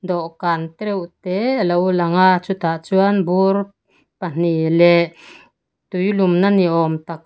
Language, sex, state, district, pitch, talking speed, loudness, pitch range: Mizo, female, Mizoram, Aizawl, 180 Hz, 130 wpm, -17 LUFS, 170-190 Hz